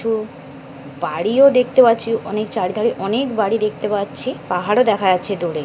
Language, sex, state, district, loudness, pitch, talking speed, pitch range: Bengali, female, West Bengal, Kolkata, -18 LUFS, 210 Hz, 150 wpm, 180-230 Hz